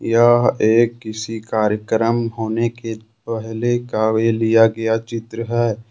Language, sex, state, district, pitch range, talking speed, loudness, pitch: Hindi, male, Jharkhand, Ranchi, 110-115 Hz, 130 wpm, -18 LUFS, 115 Hz